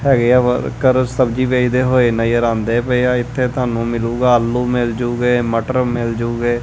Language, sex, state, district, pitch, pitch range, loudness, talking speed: Punjabi, male, Punjab, Kapurthala, 120 Hz, 120-125 Hz, -16 LUFS, 170 wpm